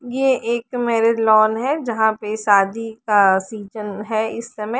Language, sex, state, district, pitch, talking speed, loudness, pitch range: Hindi, female, Chandigarh, Chandigarh, 220 Hz, 175 wpm, -19 LUFS, 210-235 Hz